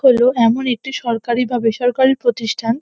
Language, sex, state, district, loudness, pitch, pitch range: Bengali, female, West Bengal, North 24 Parganas, -17 LUFS, 240 Hz, 230-255 Hz